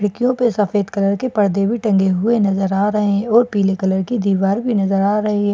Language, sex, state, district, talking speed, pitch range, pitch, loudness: Hindi, female, Bihar, Katihar, 250 wpm, 195-220 Hz, 205 Hz, -17 LUFS